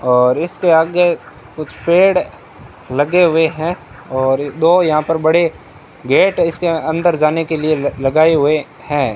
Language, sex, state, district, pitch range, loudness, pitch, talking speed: Hindi, male, Rajasthan, Bikaner, 145-170 Hz, -14 LUFS, 160 Hz, 145 wpm